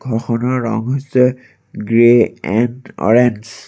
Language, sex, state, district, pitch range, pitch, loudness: Assamese, male, Assam, Sonitpur, 115-125 Hz, 120 Hz, -15 LUFS